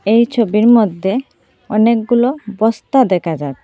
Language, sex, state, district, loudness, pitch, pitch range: Bengali, female, Assam, Hailakandi, -14 LUFS, 220 Hz, 200-240 Hz